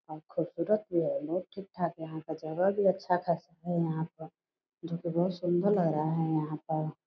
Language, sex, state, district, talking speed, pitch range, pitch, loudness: Hindi, female, Bihar, Purnia, 195 wpm, 160-180 Hz, 170 Hz, -32 LUFS